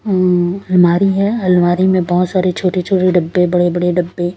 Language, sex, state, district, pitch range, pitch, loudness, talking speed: Hindi, female, Maharashtra, Gondia, 175-185 Hz, 180 Hz, -14 LUFS, 180 wpm